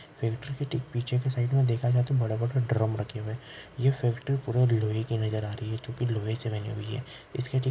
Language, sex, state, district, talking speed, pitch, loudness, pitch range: Marwari, male, Rajasthan, Nagaur, 270 wpm, 120 Hz, -29 LUFS, 110-125 Hz